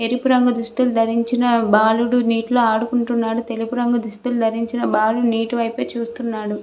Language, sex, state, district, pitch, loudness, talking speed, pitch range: Telugu, female, Andhra Pradesh, Visakhapatnam, 235 Hz, -19 LUFS, 135 wpm, 225-240 Hz